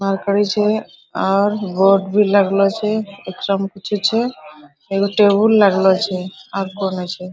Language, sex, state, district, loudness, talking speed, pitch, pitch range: Hindi, female, Bihar, Araria, -17 LUFS, 155 wpm, 195 Hz, 190-210 Hz